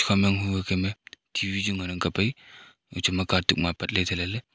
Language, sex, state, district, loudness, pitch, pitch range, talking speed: Wancho, male, Arunachal Pradesh, Longding, -26 LUFS, 95 Hz, 90-100 Hz, 290 wpm